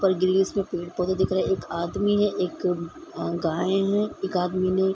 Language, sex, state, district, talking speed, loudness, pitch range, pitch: Hindi, female, Bihar, Gopalganj, 180 wpm, -25 LUFS, 180-195 Hz, 185 Hz